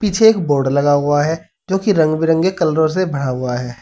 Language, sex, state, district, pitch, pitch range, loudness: Hindi, male, Uttar Pradesh, Saharanpur, 160 Hz, 140-185 Hz, -16 LUFS